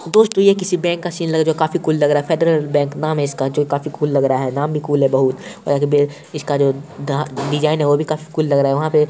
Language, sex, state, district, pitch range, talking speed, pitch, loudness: Hindi, male, Bihar, Purnia, 140-160 Hz, 325 wpm, 150 Hz, -17 LUFS